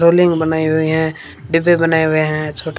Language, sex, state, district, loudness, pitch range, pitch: Hindi, female, Rajasthan, Bikaner, -15 LUFS, 155-165 Hz, 160 Hz